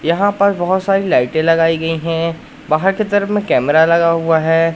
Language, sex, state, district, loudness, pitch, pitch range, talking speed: Hindi, male, Madhya Pradesh, Katni, -15 LUFS, 165 Hz, 165-195 Hz, 190 wpm